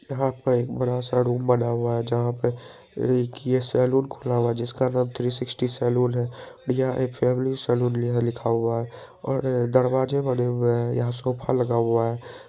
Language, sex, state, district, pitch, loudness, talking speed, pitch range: Hindi, male, Bihar, Saharsa, 125 Hz, -24 LUFS, 200 wpm, 120-130 Hz